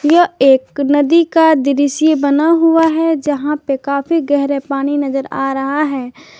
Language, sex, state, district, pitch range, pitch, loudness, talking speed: Hindi, female, Jharkhand, Garhwa, 275-315 Hz, 285 Hz, -14 LUFS, 160 wpm